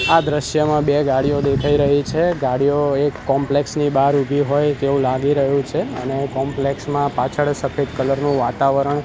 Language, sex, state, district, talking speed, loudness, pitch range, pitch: Gujarati, male, Gujarat, Gandhinagar, 180 wpm, -18 LUFS, 135-145 Hz, 140 Hz